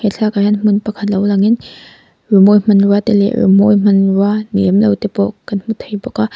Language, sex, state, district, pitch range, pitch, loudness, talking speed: Mizo, female, Mizoram, Aizawl, 200-210 Hz, 205 Hz, -13 LUFS, 215 wpm